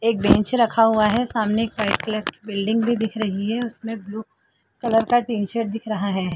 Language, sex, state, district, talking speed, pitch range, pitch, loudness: Hindi, female, Chhattisgarh, Bilaspur, 235 wpm, 210-230 Hz, 220 Hz, -21 LUFS